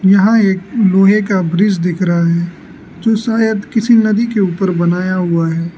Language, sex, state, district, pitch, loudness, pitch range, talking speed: Hindi, male, Arunachal Pradesh, Lower Dibang Valley, 190 Hz, -13 LUFS, 175-215 Hz, 175 wpm